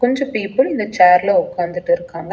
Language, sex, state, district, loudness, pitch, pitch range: Tamil, female, Tamil Nadu, Chennai, -16 LUFS, 210 Hz, 180-260 Hz